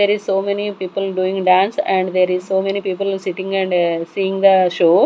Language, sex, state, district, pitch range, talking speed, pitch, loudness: English, female, Punjab, Kapurthala, 185-195 Hz, 215 wpm, 190 Hz, -17 LUFS